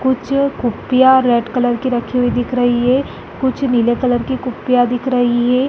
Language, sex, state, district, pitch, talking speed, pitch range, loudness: Hindi, female, Chhattisgarh, Rajnandgaon, 250 Hz, 190 wpm, 245-260 Hz, -15 LUFS